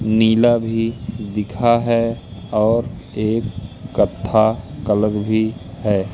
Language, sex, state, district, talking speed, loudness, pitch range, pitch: Hindi, male, Madhya Pradesh, Katni, 100 wpm, -19 LUFS, 105-115 Hz, 110 Hz